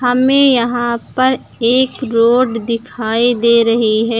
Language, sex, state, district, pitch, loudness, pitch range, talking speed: Hindi, female, Uttar Pradesh, Lucknow, 240 Hz, -13 LUFS, 230-255 Hz, 130 wpm